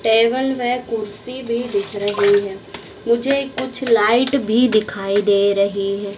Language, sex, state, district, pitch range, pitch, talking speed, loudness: Hindi, female, Madhya Pradesh, Dhar, 200-245 Hz, 225 Hz, 145 wpm, -18 LUFS